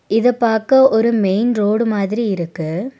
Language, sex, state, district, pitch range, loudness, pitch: Tamil, female, Tamil Nadu, Nilgiris, 200-235 Hz, -16 LUFS, 220 Hz